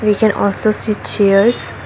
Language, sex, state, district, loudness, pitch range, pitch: English, female, Assam, Kamrup Metropolitan, -14 LUFS, 200-215 Hz, 210 Hz